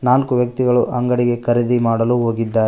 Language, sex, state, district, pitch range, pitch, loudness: Kannada, male, Karnataka, Koppal, 115-125 Hz, 120 Hz, -17 LUFS